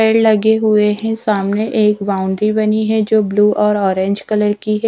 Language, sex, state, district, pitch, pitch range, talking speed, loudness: Hindi, female, Punjab, Fazilka, 215 Hz, 205-220 Hz, 195 wpm, -15 LUFS